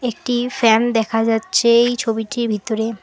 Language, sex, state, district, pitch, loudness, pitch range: Bengali, female, West Bengal, Alipurduar, 225 Hz, -17 LUFS, 225-240 Hz